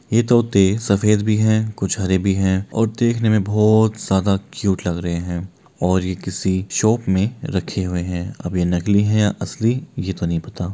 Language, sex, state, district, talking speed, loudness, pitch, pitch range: Hindi, male, Bihar, Araria, 200 wpm, -19 LUFS, 100 Hz, 95-110 Hz